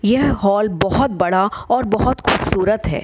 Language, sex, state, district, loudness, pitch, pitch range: Hindi, female, Bihar, Kishanganj, -17 LUFS, 205 Hz, 190-235 Hz